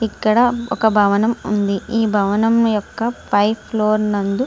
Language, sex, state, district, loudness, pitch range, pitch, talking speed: Telugu, female, Andhra Pradesh, Srikakulam, -17 LUFS, 205-230 Hz, 215 Hz, 135 wpm